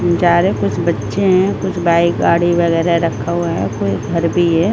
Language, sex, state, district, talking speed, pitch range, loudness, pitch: Hindi, female, Maharashtra, Mumbai Suburban, 175 wpm, 165-175 Hz, -15 LUFS, 170 Hz